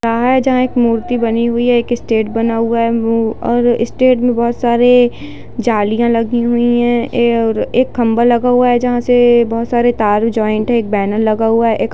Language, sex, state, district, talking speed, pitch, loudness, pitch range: Hindi, female, Bihar, Darbhanga, 210 wpm, 235 Hz, -13 LUFS, 230-240 Hz